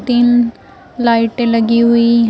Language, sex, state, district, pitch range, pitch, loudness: Hindi, female, Uttar Pradesh, Shamli, 230-240 Hz, 235 Hz, -13 LUFS